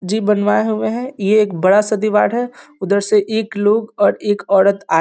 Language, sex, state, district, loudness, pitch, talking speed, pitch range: Hindi, male, Bihar, East Champaran, -16 LUFS, 205 Hz, 215 wpm, 190-215 Hz